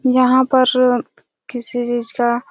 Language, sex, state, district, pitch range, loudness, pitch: Hindi, female, Chhattisgarh, Raigarh, 240-255 Hz, -16 LUFS, 250 Hz